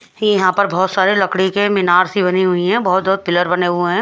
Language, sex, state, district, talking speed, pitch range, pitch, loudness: Hindi, female, Haryana, Charkhi Dadri, 270 wpm, 180-200 Hz, 190 Hz, -15 LUFS